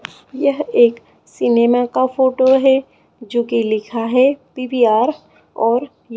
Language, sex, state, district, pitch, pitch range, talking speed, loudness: Hindi, female, Chhattisgarh, Raipur, 245 Hz, 235-265 Hz, 115 wpm, -16 LUFS